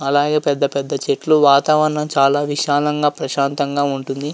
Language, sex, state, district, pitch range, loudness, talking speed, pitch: Telugu, male, Andhra Pradesh, Visakhapatnam, 140-150 Hz, -17 LUFS, 110 wpm, 145 Hz